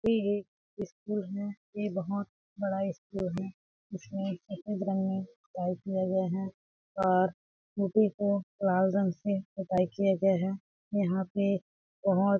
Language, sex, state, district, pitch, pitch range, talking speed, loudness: Hindi, female, Chhattisgarh, Balrampur, 195 Hz, 190-200 Hz, 155 wpm, -31 LUFS